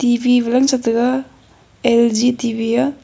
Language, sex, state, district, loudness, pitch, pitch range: Wancho, female, Arunachal Pradesh, Longding, -16 LUFS, 245 Hz, 235-255 Hz